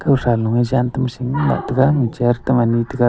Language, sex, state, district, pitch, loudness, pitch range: Wancho, male, Arunachal Pradesh, Longding, 125 Hz, -17 LUFS, 120-130 Hz